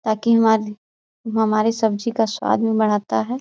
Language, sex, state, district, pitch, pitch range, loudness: Hindi, female, Bihar, Jahanabad, 220 Hz, 215-225 Hz, -19 LUFS